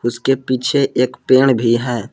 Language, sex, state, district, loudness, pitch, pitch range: Hindi, male, Jharkhand, Palamu, -16 LUFS, 125 Hz, 120-130 Hz